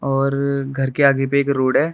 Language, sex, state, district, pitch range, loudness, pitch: Hindi, male, Arunachal Pradesh, Lower Dibang Valley, 135-140 Hz, -18 LUFS, 140 Hz